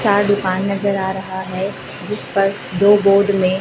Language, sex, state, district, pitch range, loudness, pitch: Hindi, female, Chhattisgarh, Raipur, 190-200 Hz, -17 LUFS, 195 Hz